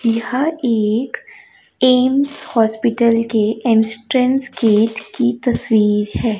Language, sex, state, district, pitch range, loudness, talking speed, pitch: Hindi, female, Chhattisgarh, Raipur, 220-255 Hz, -16 LUFS, 85 wpm, 230 Hz